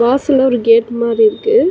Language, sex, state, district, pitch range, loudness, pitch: Tamil, female, Tamil Nadu, Chennai, 230-275 Hz, -13 LUFS, 240 Hz